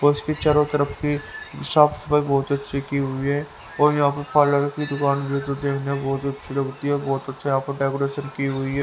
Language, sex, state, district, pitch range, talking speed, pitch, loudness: Hindi, male, Haryana, Rohtak, 140-145 Hz, 225 wpm, 140 Hz, -22 LUFS